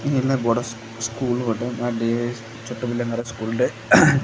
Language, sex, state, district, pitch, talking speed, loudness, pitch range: Odia, male, Odisha, Khordha, 120 Hz, 170 wpm, -22 LUFS, 115-125 Hz